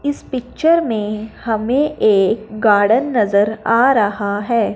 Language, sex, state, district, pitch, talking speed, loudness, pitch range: Hindi, male, Punjab, Fazilka, 220 Hz, 125 wpm, -16 LUFS, 210-250 Hz